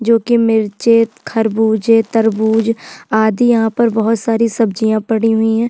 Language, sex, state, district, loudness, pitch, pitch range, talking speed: Hindi, female, Chhattisgarh, Sukma, -14 LUFS, 225 Hz, 220-230 Hz, 145 wpm